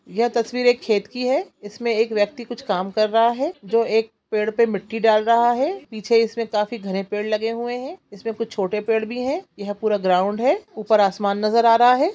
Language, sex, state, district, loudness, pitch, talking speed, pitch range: Hindi, female, Bihar, Jamui, -21 LUFS, 225 Hz, 225 wpm, 210-240 Hz